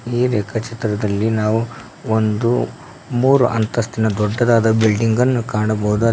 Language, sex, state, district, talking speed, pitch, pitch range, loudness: Kannada, male, Karnataka, Koppal, 100 wpm, 115 Hz, 110-120 Hz, -18 LUFS